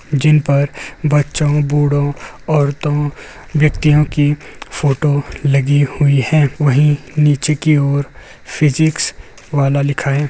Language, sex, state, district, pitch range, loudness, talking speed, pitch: Hindi, male, Uttar Pradesh, Gorakhpur, 140-150 Hz, -15 LUFS, 110 wpm, 145 Hz